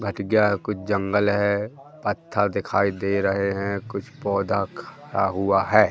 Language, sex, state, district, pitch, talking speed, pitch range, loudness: Hindi, male, Madhya Pradesh, Katni, 100 Hz, 130 wpm, 100-105 Hz, -23 LUFS